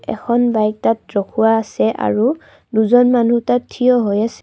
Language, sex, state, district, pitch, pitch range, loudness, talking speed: Assamese, female, Assam, Kamrup Metropolitan, 230 Hz, 220-245 Hz, -16 LUFS, 165 wpm